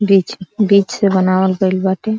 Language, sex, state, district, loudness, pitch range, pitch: Bhojpuri, female, Uttar Pradesh, Deoria, -14 LUFS, 190-205 Hz, 190 Hz